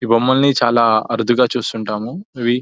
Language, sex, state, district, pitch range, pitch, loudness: Telugu, male, Telangana, Nalgonda, 115-125 Hz, 120 Hz, -16 LUFS